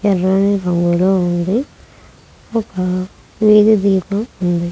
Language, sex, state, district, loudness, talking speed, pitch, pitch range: Telugu, female, Andhra Pradesh, Krishna, -15 LUFS, 90 wpm, 190 Hz, 180-210 Hz